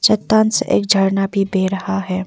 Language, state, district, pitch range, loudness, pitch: Hindi, Arunachal Pradesh, Papum Pare, 195-215 Hz, -16 LUFS, 195 Hz